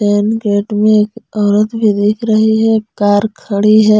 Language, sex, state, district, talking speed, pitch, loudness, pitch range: Hindi, female, Jharkhand, Garhwa, 180 wpm, 215 Hz, -12 LUFS, 205-220 Hz